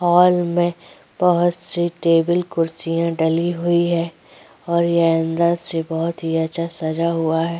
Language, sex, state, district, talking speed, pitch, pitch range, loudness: Hindi, female, Uttar Pradesh, Jyotiba Phule Nagar, 150 wpm, 170 Hz, 165-175 Hz, -19 LUFS